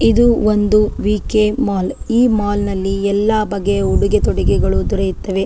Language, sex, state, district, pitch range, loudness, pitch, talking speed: Kannada, female, Karnataka, Dakshina Kannada, 195-215 Hz, -16 LUFS, 205 Hz, 130 wpm